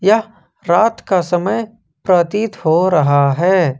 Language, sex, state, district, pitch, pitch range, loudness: Hindi, male, Jharkhand, Ranchi, 185 Hz, 170-215 Hz, -15 LUFS